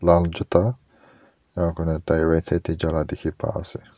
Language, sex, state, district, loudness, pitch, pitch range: Nagamese, male, Nagaland, Dimapur, -23 LUFS, 85 Hz, 80-85 Hz